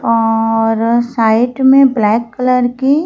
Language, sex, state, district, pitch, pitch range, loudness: Hindi, female, Madhya Pradesh, Bhopal, 235 Hz, 225-255 Hz, -12 LUFS